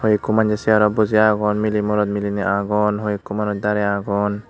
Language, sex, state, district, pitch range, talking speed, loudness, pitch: Chakma, male, Tripura, West Tripura, 100-105 Hz, 175 wpm, -19 LUFS, 105 Hz